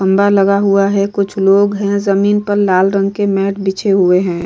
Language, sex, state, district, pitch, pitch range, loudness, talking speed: Hindi, female, Uttar Pradesh, Jalaun, 195 Hz, 195-200 Hz, -13 LUFS, 215 wpm